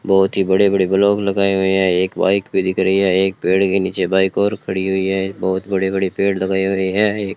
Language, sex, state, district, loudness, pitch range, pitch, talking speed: Hindi, male, Rajasthan, Bikaner, -17 LUFS, 95-100 Hz, 95 Hz, 245 wpm